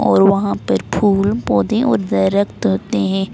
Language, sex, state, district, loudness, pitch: Hindi, female, Delhi, New Delhi, -16 LUFS, 190 Hz